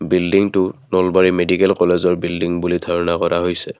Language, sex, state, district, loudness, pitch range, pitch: Assamese, male, Assam, Kamrup Metropolitan, -17 LUFS, 85-90 Hz, 90 Hz